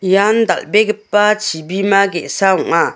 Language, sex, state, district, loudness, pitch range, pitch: Garo, female, Meghalaya, West Garo Hills, -14 LUFS, 190-215 Hz, 200 Hz